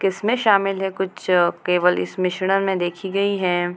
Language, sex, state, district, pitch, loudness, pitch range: Hindi, female, Bihar, Gopalganj, 190 Hz, -20 LUFS, 180-195 Hz